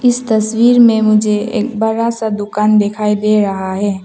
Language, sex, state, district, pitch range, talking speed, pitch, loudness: Hindi, female, Arunachal Pradesh, Papum Pare, 210-225 Hz, 175 wpm, 215 Hz, -13 LUFS